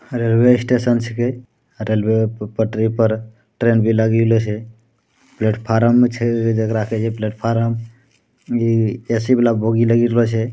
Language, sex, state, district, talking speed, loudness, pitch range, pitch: Angika, male, Bihar, Bhagalpur, 135 wpm, -17 LUFS, 110-120 Hz, 115 Hz